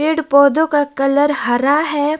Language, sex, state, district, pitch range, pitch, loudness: Hindi, female, Himachal Pradesh, Shimla, 280-310 Hz, 290 Hz, -15 LUFS